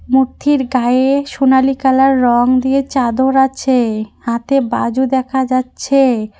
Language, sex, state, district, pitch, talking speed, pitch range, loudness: Bengali, female, West Bengal, Cooch Behar, 260 Hz, 115 wpm, 250-270 Hz, -14 LUFS